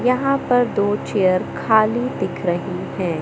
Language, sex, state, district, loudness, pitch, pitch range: Hindi, male, Madhya Pradesh, Katni, -19 LUFS, 230 Hz, 205-250 Hz